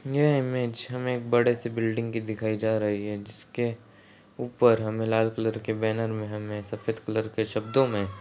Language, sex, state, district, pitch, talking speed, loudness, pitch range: Hindi, male, Bihar, Saharsa, 110 Hz, 195 wpm, -27 LUFS, 110-120 Hz